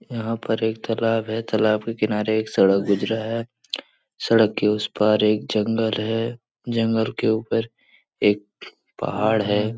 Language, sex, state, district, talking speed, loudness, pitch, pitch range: Hindi, male, Bihar, Lakhisarai, 160 wpm, -22 LUFS, 110 Hz, 105-115 Hz